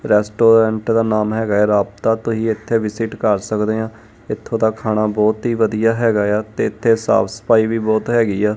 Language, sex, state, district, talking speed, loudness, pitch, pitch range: Punjabi, male, Punjab, Kapurthala, 205 wpm, -17 LUFS, 110 Hz, 105-115 Hz